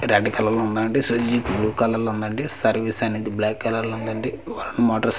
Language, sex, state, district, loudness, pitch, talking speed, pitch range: Telugu, male, Andhra Pradesh, Manyam, -23 LUFS, 110 Hz, 210 wpm, 110-115 Hz